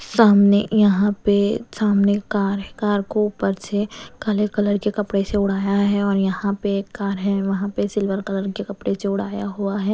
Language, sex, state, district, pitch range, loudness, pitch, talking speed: Hindi, female, Bihar, West Champaran, 200-210 Hz, -20 LUFS, 200 Hz, 200 wpm